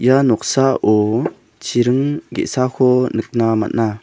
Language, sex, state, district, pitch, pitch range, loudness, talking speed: Garo, male, Meghalaya, South Garo Hills, 125 Hz, 115-130 Hz, -17 LUFS, 90 wpm